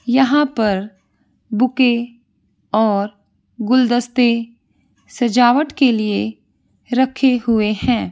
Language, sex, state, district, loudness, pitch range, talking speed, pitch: Hindi, female, Jharkhand, Sahebganj, -17 LUFS, 215-255 Hz, 80 wpm, 240 Hz